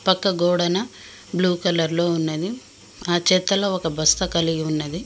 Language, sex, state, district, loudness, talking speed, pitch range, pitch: Telugu, female, Telangana, Mahabubabad, -21 LUFS, 130 wpm, 165-185 Hz, 175 Hz